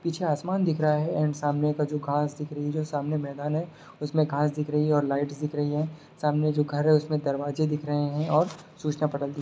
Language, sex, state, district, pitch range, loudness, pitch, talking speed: Hindi, male, Bihar, Sitamarhi, 145-155 Hz, -27 LUFS, 150 Hz, 255 wpm